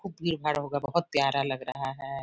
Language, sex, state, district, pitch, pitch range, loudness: Hindi, female, Chhattisgarh, Sarguja, 140 Hz, 135-160 Hz, -29 LUFS